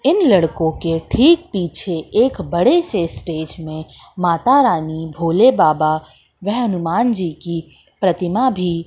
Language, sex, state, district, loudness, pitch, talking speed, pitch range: Hindi, female, Madhya Pradesh, Katni, -17 LUFS, 175 Hz, 135 wpm, 165-240 Hz